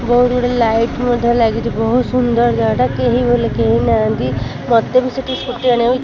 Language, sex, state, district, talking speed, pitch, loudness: Odia, female, Odisha, Khordha, 170 wpm, 235 Hz, -15 LUFS